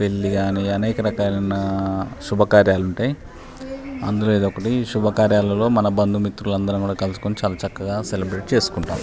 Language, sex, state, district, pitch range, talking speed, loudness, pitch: Telugu, male, Telangana, Nalgonda, 100-105 Hz, 135 wpm, -20 LUFS, 100 Hz